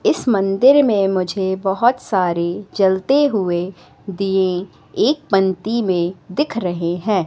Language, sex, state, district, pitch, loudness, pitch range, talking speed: Hindi, female, Madhya Pradesh, Katni, 195 Hz, -18 LUFS, 185-225 Hz, 125 wpm